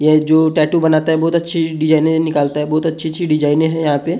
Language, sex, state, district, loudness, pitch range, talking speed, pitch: Hindi, male, Maharashtra, Gondia, -15 LUFS, 155-160 Hz, 240 wpm, 160 Hz